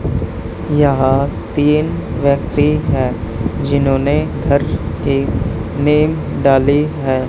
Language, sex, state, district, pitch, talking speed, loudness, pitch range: Hindi, male, Haryana, Charkhi Dadri, 140 Hz, 80 wpm, -16 LUFS, 130-145 Hz